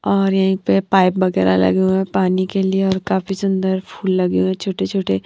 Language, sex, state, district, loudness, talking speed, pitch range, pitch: Hindi, female, Punjab, Pathankot, -17 LUFS, 215 wpm, 185-195 Hz, 190 Hz